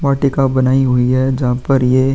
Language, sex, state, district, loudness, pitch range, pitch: Hindi, male, Uttar Pradesh, Jalaun, -14 LUFS, 130-135 Hz, 130 Hz